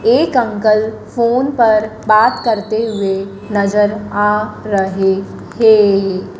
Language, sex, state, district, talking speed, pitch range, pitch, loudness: Hindi, female, Madhya Pradesh, Dhar, 105 wpm, 200-220 Hz, 210 Hz, -14 LUFS